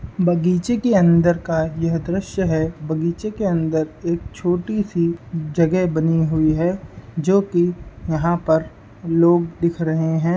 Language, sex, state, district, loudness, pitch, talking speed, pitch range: Hindi, male, Uttar Pradesh, Ghazipur, -20 LUFS, 170 Hz, 145 wpm, 160-180 Hz